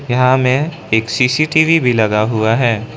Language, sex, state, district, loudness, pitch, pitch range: Hindi, male, Arunachal Pradesh, Lower Dibang Valley, -14 LUFS, 125 Hz, 110-145 Hz